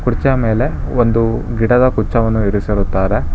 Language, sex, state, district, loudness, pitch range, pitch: Kannada, male, Karnataka, Bangalore, -15 LUFS, 105-120 Hz, 115 Hz